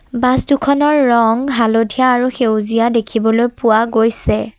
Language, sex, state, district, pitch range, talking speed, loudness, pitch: Assamese, female, Assam, Sonitpur, 225-255 Hz, 120 wpm, -14 LUFS, 235 Hz